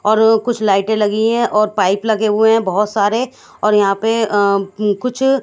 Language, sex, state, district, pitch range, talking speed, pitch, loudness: Hindi, female, Haryana, Charkhi Dadri, 205-225 Hz, 190 wpm, 215 Hz, -15 LUFS